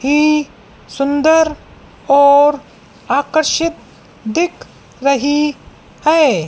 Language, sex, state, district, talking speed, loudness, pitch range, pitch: Hindi, female, Madhya Pradesh, Dhar, 65 wpm, -14 LUFS, 280-315 Hz, 295 Hz